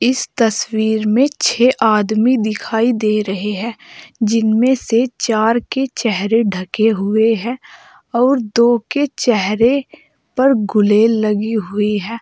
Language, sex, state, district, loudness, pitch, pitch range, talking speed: Hindi, female, Uttar Pradesh, Saharanpur, -16 LUFS, 225 Hz, 215-245 Hz, 130 wpm